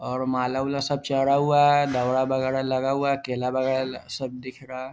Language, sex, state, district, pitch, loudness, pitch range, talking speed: Hindi, male, Bihar, Vaishali, 130 Hz, -24 LUFS, 130-140 Hz, 195 wpm